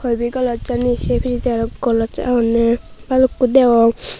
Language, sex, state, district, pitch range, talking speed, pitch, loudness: Chakma, female, Tripura, Unakoti, 230-250 Hz, 130 wpm, 245 Hz, -17 LUFS